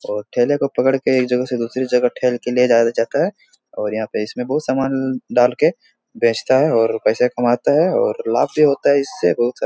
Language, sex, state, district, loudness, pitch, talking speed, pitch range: Hindi, male, Bihar, Jahanabad, -17 LUFS, 125 Hz, 240 wpm, 120-135 Hz